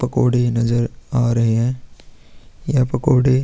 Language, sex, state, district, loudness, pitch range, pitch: Hindi, male, Uttar Pradesh, Hamirpur, -18 LUFS, 120-130 Hz, 125 Hz